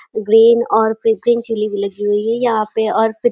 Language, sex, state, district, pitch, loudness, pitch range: Hindi, female, Uttar Pradesh, Deoria, 220 Hz, -15 LUFS, 215-230 Hz